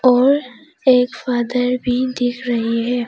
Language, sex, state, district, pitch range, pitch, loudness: Hindi, female, Arunachal Pradesh, Papum Pare, 245-255 Hz, 250 Hz, -18 LUFS